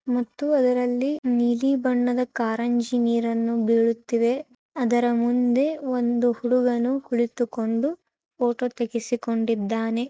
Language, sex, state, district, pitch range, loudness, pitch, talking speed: Kannada, female, Karnataka, Chamarajanagar, 235-250 Hz, -23 LUFS, 245 Hz, 85 wpm